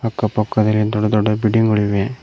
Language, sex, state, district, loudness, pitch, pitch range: Kannada, male, Karnataka, Koppal, -17 LUFS, 105 Hz, 105-110 Hz